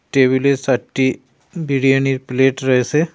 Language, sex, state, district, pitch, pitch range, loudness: Bengali, male, West Bengal, Cooch Behar, 135 Hz, 130-140 Hz, -16 LUFS